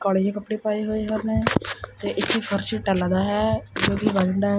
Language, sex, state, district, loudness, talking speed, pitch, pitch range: Punjabi, male, Punjab, Kapurthala, -23 LUFS, 235 wpm, 205 Hz, 195-215 Hz